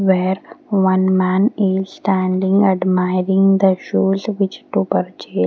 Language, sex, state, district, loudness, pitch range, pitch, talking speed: English, female, Haryana, Rohtak, -17 LUFS, 185-195 Hz, 190 Hz, 120 wpm